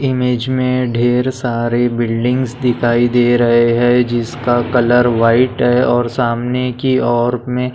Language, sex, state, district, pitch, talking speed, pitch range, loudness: Hindi, male, Maharashtra, Pune, 120 Hz, 140 wpm, 120-125 Hz, -14 LUFS